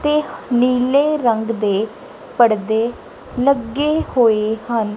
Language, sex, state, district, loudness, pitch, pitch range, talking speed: Punjabi, female, Punjab, Kapurthala, -17 LUFS, 240 Hz, 220-280 Hz, 95 wpm